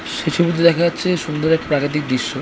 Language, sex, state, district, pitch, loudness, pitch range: Bengali, female, West Bengal, North 24 Parganas, 160 Hz, -18 LUFS, 150-170 Hz